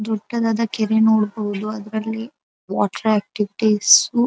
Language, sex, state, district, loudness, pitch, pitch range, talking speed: Kannada, female, Karnataka, Dharwad, -19 LUFS, 220 Hz, 210-225 Hz, 100 wpm